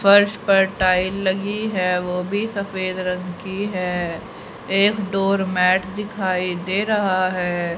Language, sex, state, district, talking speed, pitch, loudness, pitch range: Hindi, female, Haryana, Rohtak, 140 wpm, 190 Hz, -20 LUFS, 180-200 Hz